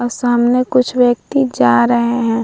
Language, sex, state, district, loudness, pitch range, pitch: Hindi, female, Bihar, Vaishali, -14 LUFS, 235-250 Hz, 240 Hz